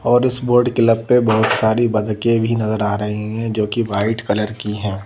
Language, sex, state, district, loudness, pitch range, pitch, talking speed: Hindi, female, Madhya Pradesh, Bhopal, -17 LUFS, 105-115 Hz, 110 Hz, 225 wpm